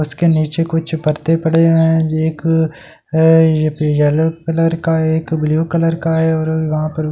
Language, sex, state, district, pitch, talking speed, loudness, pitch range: Hindi, male, Delhi, New Delhi, 160 Hz, 185 wpm, -15 LUFS, 155-165 Hz